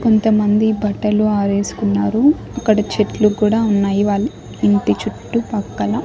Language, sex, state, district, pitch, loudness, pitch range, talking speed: Telugu, male, Andhra Pradesh, Annamaya, 210 Hz, -17 LUFS, 200-220 Hz, 110 wpm